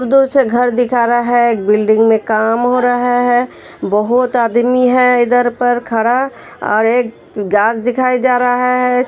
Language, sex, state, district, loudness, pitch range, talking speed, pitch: Hindi, female, Uttar Pradesh, Hamirpur, -13 LUFS, 230-250 Hz, 170 wpm, 245 Hz